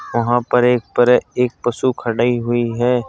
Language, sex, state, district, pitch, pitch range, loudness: Hindi, male, Uttar Pradesh, Saharanpur, 120 Hz, 120-125 Hz, -17 LUFS